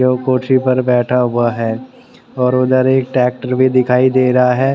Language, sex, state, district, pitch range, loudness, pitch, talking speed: Hindi, male, Haryana, Rohtak, 125-130 Hz, -14 LUFS, 130 Hz, 190 wpm